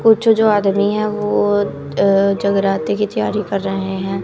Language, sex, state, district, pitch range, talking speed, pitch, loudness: Hindi, female, Punjab, Kapurthala, 195-210 Hz, 170 wpm, 200 Hz, -16 LUFS